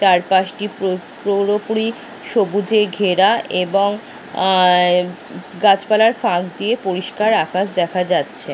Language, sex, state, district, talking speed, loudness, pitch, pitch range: Bengali, female, West Bengal, Kolkata, 100 wpm, -17 LUFS, 195 Hz, 180-210 Hz